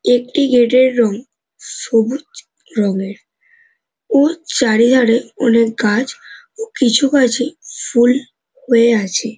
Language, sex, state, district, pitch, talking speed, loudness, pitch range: Bengali, male, West Bengal, North 24 Parganas, 250 Hz, 120 wpm, -14 LUFS, 230-280 Hz